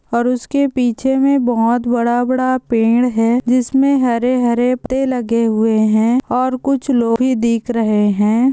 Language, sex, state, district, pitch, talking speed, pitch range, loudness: Hindi, female, Andhra Pradesh, Chittoor, 245 Hz, 150 wpm, 230-255 Hz, -15 LUFS